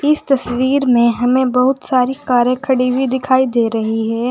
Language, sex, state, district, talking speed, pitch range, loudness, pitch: Hindi, female, Uttar Pradesh, Saharanpur, 180 wpm, 245-265 Hz, -15 LUFS, 255 Hz